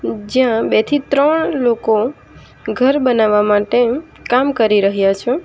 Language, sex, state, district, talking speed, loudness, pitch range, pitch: Gujarati, female, Gujarat, Valsad, 130 wpm, -15 LUFS, 215-275 Hz, 240 Hz